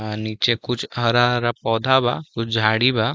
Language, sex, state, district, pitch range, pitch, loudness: Bhojpuri, male, Uttar Pradesh, Deoria, 110-120 Hz, 120 Hz, -20 LUFS